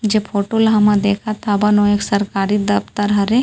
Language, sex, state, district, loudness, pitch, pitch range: Chhattisgarhi, female, Chhattisgarh, Rajnandgaon, -16 LUFS, 205 Hz, 205-215 Hz